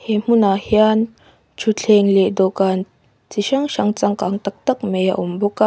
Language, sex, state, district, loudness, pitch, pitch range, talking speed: Mizo, female, Mizoram, Aizawl, -18 LUFS, 205 Hz, 195-220 Hz, 180 wpm